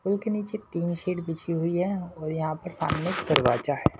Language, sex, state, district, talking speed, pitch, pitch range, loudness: Hindi, male, Delhi, New Delhi, 180 wpm, 170 Hz, 155-185 Hz, -28 LUFS